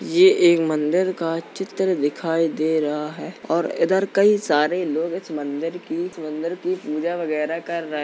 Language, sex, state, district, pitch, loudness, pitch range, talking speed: Hindi, female, Uttar Pradesh, Jalaun, 165 Hz, -22 LUFS, 155-180 Hz, 180 wpm